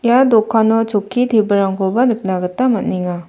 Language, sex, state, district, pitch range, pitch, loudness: Garo, female, Meghalaya, South Garo Hills, 190-240 Hz, 220 Hz, -15 LUFS